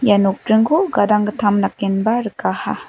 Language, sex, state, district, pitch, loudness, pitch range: Garo, female, Meghalaya, West Garo Hills, 210 Hz, -17 LUFS, 200-230 Hz